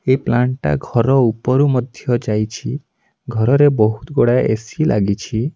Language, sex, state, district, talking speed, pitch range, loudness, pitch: Odia, male, Odisha, Nuapada, 130 wpm, 110-135 Hz, -17 LUFS, 125 Hz